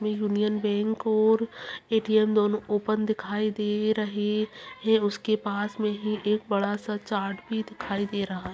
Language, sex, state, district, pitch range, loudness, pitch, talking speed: Hindi, female, Chhattisgarh, Kabirdham, 205-215 Hz, -27 LUFS, 215 Hz, 155 wpm